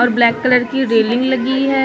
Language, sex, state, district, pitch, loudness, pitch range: Hindi, female, Uttar Pradesh, Lucknow, 250 Hz, -15 LUFS, 240-265 Hz